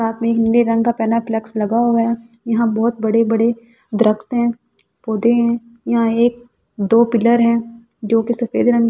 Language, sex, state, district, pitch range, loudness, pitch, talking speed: Hindi, female, Delhi, New Delhi, 225-235 Hz, -17 LUFS, 230 Hz, 190 wpm